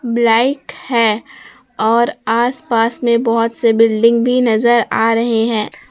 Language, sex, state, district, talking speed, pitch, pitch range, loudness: Hindi, female, Jharkhand, Palamu, 130 wpm, 230 Hz, 225-240 Hz, -14 LUFS